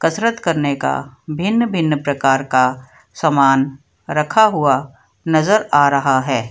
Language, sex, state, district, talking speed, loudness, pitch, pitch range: Hindi, female, Bihar, Madhepura, 130 wpm, -16 LUFS, 145 Hz, 135-165 Hz